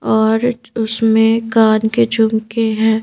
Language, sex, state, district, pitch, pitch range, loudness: Hindi, female, Madhya Pradesh, Bhopal, 225 Hz, 220-230 Hz, -14 LUFS